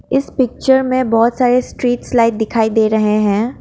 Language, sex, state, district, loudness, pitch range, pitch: Hindi, female, Assam, Kamrup Metropolitan, -15 LUFS, 220-255 Hz, 235 Hz